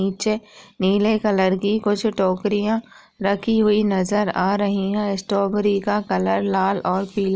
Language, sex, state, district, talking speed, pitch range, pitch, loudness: Hindi, female, Uttar Pradesh, Deoria, 155 wpm, 195-210 Hz, 200 Hz, -21 LUFS